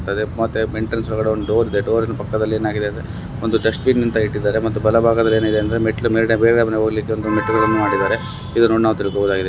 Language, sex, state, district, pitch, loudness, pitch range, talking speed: Kannada, male, Karnataka, Bellary, 110 Hz, -18 LUFS, 105-115 Hz, 185 wpm